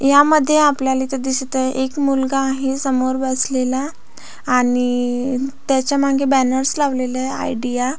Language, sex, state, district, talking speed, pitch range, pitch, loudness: Marathi, female, Maharashtra, Aurangabad, 130 wpm, 255-275 Hz, 265 Hz, -18 LUFS